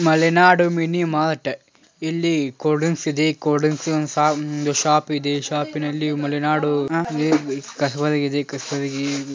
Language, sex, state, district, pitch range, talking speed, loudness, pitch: Kannada, male, Karnataka, Dharwad, 145-155 Hz, 110 wpm, -20 LUFS, 150 Hz